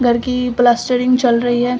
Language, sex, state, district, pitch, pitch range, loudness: Hindi, female, Bihar, Samastipur, 245 Hz, 240-250 Hz, -15 LUFS